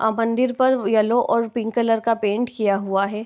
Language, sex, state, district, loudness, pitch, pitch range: Hindi, female, Bihar, Begusarai, -20 LUFS, 225 Hz, 215-240 Hz